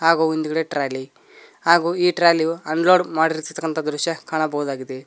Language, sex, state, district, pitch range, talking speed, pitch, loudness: Kannada, male, Karnataka, Koppal, 150-165 Hz, 130 wpm, 160 Hz, -20 LUFS